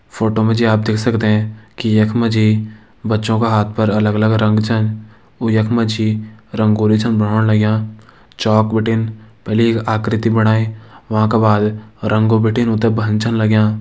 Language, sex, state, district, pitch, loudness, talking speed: Hindi, male, Uttarakhand, Uttarkashi, 110 Hz, -15 LUFS, 170 wpm